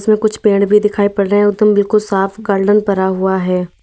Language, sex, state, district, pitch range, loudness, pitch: Hindi, female, Uttar Pradesh, Lalitpur, 195-210 Hz, -13 LUFS, 205 Hz